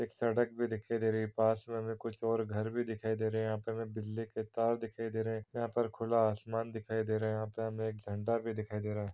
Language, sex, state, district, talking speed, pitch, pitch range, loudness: Hindi, male, Chhattisgarh, Bilaspur, 295 wpm, 110 Hz, 110-115 Hz, -36 LUFS